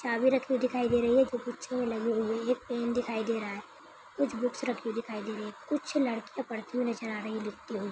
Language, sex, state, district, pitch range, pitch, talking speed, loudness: Hindi, female, Chhattisgarh, Bilaspur, 220-255 Hz, 235 Hz, 275 wpm, -32 LUFS